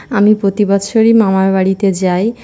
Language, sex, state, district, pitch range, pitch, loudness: Bengali, female, West Bengal, North 24 Parganas, 190-215 Hz, 200 Hz, -12 LUFS